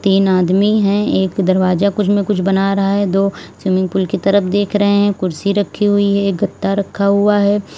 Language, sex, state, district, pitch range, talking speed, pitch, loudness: Hindi, female, Uttar Pradesh, Lalitpur, 195-205 Hz, 210 wpm, 200 Hz, -15 LUFS